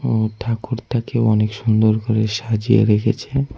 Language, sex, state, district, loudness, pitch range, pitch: Bengali, male, West Bengal, Cooch Behar, -18 LUFS, 110-120 Hz, 110 Hz